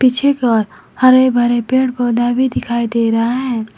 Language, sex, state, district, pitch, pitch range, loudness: Hindi, female, Jharkhand, Garhwa, 240 Hz, 235-255 Hz, -14 LUFS